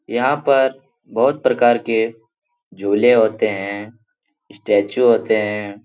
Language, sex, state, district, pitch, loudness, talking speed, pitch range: Hindi, male, Bihar, Lakhisarai, 110 Hz, -17 LUFS, 115 wpm, 105-120 Hz